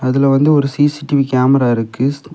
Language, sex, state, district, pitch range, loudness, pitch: Tamil, male, Tamil Nadu, Kanyakumari, 130-145 Hz, -14 LUFS, 140 Hz